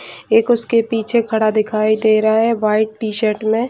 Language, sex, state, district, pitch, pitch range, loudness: Hindi, female, Bihar, Kishanganj, 220 Hz, 215-230 Hz, -16 LUFS